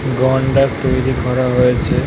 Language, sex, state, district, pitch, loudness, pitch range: Bengali, male, West Bengal, North 24 Parganas, 130 Hz, -15 LUFS, 125-130 Hz